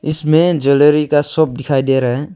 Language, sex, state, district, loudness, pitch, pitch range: Hindi, male, Arunachal Pradesh, Longding, -13 LUFS, 145 Hz, 135-155 Hz